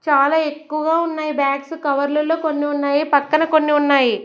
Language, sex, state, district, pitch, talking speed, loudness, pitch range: Telugu, female, Andhra Pradesh, Sri Satya Sai, 295 Hz, 140 wpm, -18 LUFS, 285-315 Hz